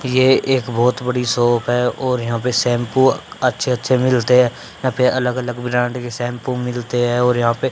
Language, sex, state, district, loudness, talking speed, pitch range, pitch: Hindi, male, Haryana, Charkhi Dadri, -17 LUFS, 200 wpm, 120-125 Hz, 125 Hz